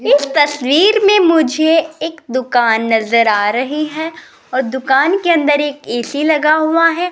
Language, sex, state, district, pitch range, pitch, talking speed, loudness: Hindi, female, Rajasthan, Jaipur, 255-320 Hz, 295 Hz, 160 wpm, -13 LUFS